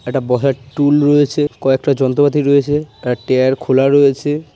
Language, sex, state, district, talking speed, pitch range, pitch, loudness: Bengali, male, West Bengal, North 24 Parganas, 170 wpm, 130-145 Hz, 140 Hz, -14 LUFS